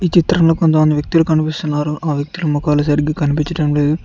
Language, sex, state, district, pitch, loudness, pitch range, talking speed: Telugu, male, Telangana, Mahabubabad, 155 Hz, -15 LUFS, 150-165 Hz, 165 wpm